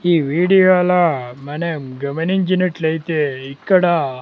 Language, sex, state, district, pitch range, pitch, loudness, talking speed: Telugu, male, Andhra Pradesh, Sri Satya Sai, 140-180 Hz, 165 Hz, -17 LUFS, 70 wpm